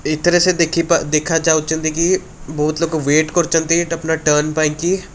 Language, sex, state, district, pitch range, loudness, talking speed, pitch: Odia, male, Odisha, Khordha, 155-170 Hz, -16 LUFS, 150 wpm, 160 Hz